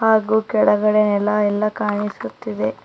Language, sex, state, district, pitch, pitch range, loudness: Kannada, female, Karnataka, Bangalore, 210 Hz, 205-215 Hz, -18 LUFS